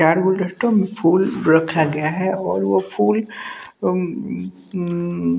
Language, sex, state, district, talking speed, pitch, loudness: Hindi, male, Bihar, West Champaran, 125 wpm, 165 Hz, -19 LUFS